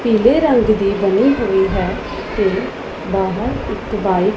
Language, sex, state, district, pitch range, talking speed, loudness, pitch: Punjabi, female, Punjab, Pathankot, 195-230 Hz, 150 wpm, -17 LUFS, 200 Hz